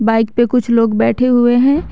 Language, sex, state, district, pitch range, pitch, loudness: Hindi, male, Jharkhand, Garhwa, 225-250 Hz, 240 Hz, -13 LUFS